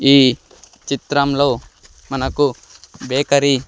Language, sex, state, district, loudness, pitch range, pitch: Telugu, male, Andhra Pradesh, Sri Satya Sai, -17 LUFS, 135-140 Hz, 140 Hz